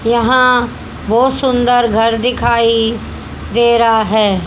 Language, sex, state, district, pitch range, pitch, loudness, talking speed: Hindi, female, Haryana, Jhajjar, 225-245 Hz, 235 Hz, -12 LUFS, 105 wpm